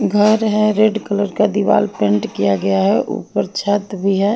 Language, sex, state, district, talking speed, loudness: Hindi, female, Haryana, Jhajjar, 190 wpm, -16 LUFS